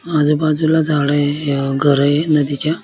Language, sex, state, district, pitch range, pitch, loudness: Marathi, male, Maharashtra, Dhule, 145-155 Hz, 150 Hz, -15 LUFS